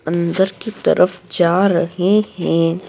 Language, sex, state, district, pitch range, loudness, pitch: Hindi, female, Madhya Pradesh, Dhar, 170-195 Hz, -17 LUFS, 180 Hz